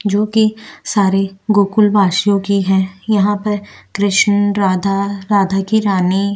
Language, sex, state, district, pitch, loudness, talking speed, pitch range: Hindi, female, Uttarakhand, Tehri Garhwal, 200 Hz, -15 LUFS, 150 wpm, 195-205 Hz